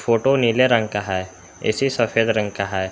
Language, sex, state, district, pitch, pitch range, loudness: Hindi, male, Jharkhand, Palamu, 110 Hz, 95-120 Hz, -20 LUFS